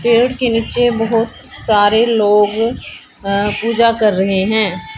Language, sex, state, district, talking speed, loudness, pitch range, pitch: Hindi, female, Haryana, Jhajjar, 135 wpm, -14 LUFS, 205-230 Hz, 220 Hz